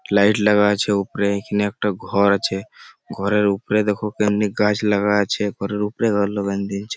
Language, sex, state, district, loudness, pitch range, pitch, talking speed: Bengali, male, West Bengal, Malda, -20 LUFS, 100-105 Hz, 105 Hz, 170 wpm